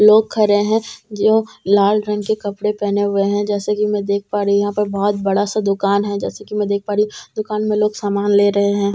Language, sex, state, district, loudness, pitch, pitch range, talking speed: Hindi, female, Bihar, Katihar, -17 LUFS, 205 Hz, 200-210 Hz, 250 wpm